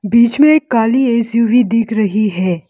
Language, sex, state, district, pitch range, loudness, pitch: Hindi, female, Arunachal Pradesh, Lower Dibang Valley, 215-240 Hz, -13 LUFS, 230 Hz